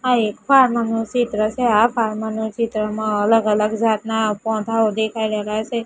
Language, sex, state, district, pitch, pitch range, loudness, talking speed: Gujarati, female, Gujarat, Gandhinagar, 220 Hz, 215-230 Hz, -19 LUFS, 155 wpm